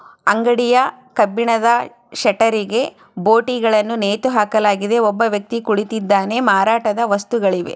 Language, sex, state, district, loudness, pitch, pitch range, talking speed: Kannada, female, Karnataka, Chamarajanagar, -16 LUFS, 220 Hz, 205-235 Hz, 95 wpm